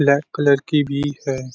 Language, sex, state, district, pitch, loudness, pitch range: Hindi, male, Chhattisgarh, Rajnandgaon, 140 Hz, -19 LUFS, 140-145 Hz